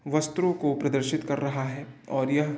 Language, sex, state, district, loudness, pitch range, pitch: Hindi, male, Uttar Pradesh, Varanasi, -27 LUFS, 135-155 Hz, 145 Hz